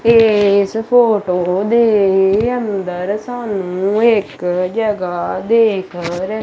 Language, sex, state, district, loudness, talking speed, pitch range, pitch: Punjabi, male, Punjab, Kapurthala, -15 LUFS, 85 wpm, 185-225 Hz, 205 Hz